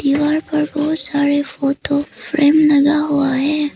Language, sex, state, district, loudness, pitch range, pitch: Hindi, female, Arunachal Pradesh, Papum Pare, -16 LUFS, 285-300 Hz, 290 Hz